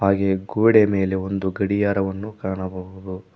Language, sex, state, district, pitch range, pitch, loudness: Kannada, male, Karnataka, Koppal, 95-100 Hz, 95 Hz, -21 LUFS